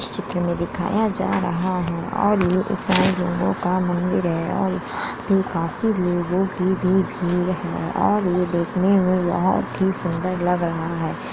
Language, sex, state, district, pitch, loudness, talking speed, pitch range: Hindi, male, Uttar Pradesh, Jalaun, 180 Hz, -21 LUFS, 170 wpm, 175-190 Hz